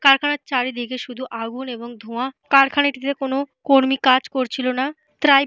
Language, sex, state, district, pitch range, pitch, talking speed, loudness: Bengali, female, Jharkhand, Jamtara, 255-280 Hz, 265 Hz, 130 wpm, -20 LUFS